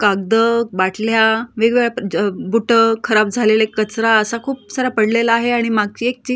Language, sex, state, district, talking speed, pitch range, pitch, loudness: Marathi, female, Maharashtra, Solapur, 160 wpm, 215-235 Hz, 225 Hz, -16 LUFS